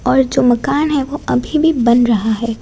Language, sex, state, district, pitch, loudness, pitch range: Hindi, female, Gujarat, Gandhinagar, 255 Hz, -14 LUFS, 235-285 Hz